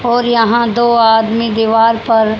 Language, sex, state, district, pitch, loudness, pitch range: Hindi, female, Haryana, Jhajjar, 225 Hz, -12 LUFS, 225-235 Hz